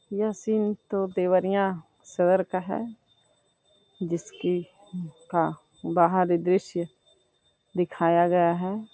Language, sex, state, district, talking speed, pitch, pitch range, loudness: Hindi, female, Uttar Pradesh, Deoria, 95 wpm, 185 Hz, 175-195 Hz, -26 LUFS